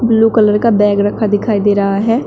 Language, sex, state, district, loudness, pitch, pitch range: Hindi, female, Uttar Pradesh, Shamli, -12 LUFS, 210 Hz, 205-225 Hz